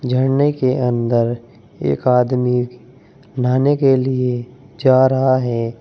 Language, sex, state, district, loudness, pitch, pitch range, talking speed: Hindi, male, Uttar Pradesh, Saharanpur, -17 LUFS, 125 Hz, 120-130 Hz, 115 wpm